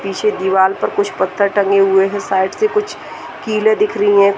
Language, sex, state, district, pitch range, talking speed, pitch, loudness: Hindi, female, Bihar, Gaya, 195-215 Hz, 205 wpm, 200 Hz, -15 LUFS